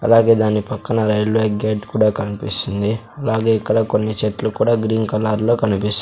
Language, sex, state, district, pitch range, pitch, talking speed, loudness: Telugu, male, Andhra Pradesh, Sri Satya Sai, 105-110 Hz, 110 Hz, 160 wpm, -18 LUFS